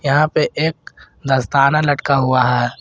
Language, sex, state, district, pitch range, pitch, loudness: Hindi, male, Jharkhand, Garhwa, 130-155 Hz, 140 Hz, -16 LUFS